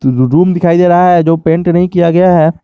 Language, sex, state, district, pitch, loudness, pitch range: Hindi, male, Jharkhand, Garhwa, 175 Hz, -9 LUFS, 165-180 Hz